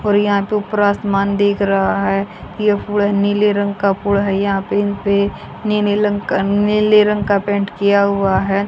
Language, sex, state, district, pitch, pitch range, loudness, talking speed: Hindi, female, Haryana, Jhajjar, 200 Hz, 200-205 Hz, -16 LUFS, 200 wpm